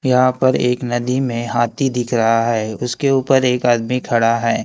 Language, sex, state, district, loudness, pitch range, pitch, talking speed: Hindi, male, Maharashtra, Gondia, -17 LUFS, 115-130 Hz, 125 Hz, 195 wpm